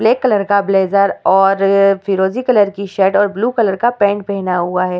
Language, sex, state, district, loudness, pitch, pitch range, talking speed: Hindi, female, Bihar, Vaishali, -14 LUFS, 200 Hz, 190-205 Hz, 205 wpm